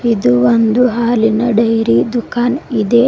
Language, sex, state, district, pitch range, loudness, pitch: Kannada, female, Karnataka, Bidar, 225-240 Hz, -13 LUFS, 235 Hz